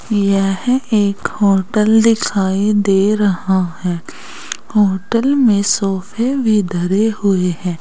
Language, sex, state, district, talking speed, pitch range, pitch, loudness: Hindi, female, Uttar Pradesh, Saharanpur, 105 wpm, 190-215 Hz, 200 Hz, -15 LUFS